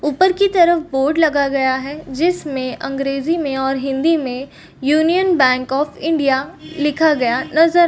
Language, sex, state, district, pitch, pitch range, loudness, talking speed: Hindi, female, Chhattisgarh, Bastar, 290 Hz, 270-325 Hz, -17 LUFS, 160 wpm